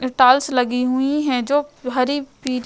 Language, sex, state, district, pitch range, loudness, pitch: Hindi, female, Uttar Pradesh, Jyotiba Phule Nagar, 250-280 Hz, -19 LUFS, 260 Hz